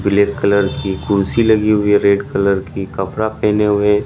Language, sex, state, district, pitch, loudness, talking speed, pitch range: Hindi, male, Bihar, Katihar, 100 Hz, -15 LUFS, 205 wpm, 100-105 Hz